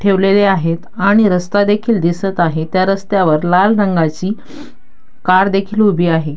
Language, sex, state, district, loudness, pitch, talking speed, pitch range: Marathi, female, Maharashtra, Dhule, -14 LUFS, 190 Hz, 140 wpm, 175-200 Hz